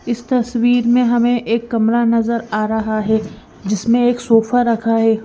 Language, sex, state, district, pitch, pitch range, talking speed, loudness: Hindi, female, Punjab, Fazilka, 230 Hz, 220-240 Hz, 170 wpm, -16 LUFS